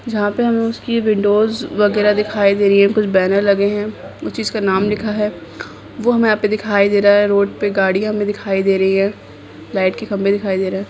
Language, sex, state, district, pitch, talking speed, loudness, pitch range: Hindi, female, Chhattisgarh, Raigarh, 205 Hz, 235 wpm, -16 LUFS, 200-215 Hz